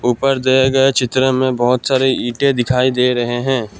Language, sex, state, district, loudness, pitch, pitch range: Hindi, male, Assam, Kamrup Metropolitan, -15 LUFS, 130 Hz, 125-130 Hz